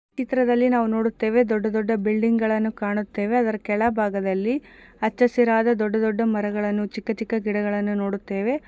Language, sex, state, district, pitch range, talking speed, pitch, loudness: Kannada, female, Karnataka, Gulbarga, 210-230 Hz, 125 wpm, 220 Hz, -23 LUFS